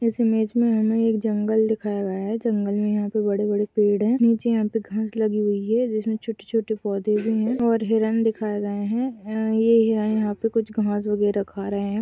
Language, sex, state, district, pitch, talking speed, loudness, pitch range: Hindi, female, Uttar Pradesh, Jyotiba Phule Nagar, 220 Hz, 215 wpm, -23 LUFS, 210-225 Hz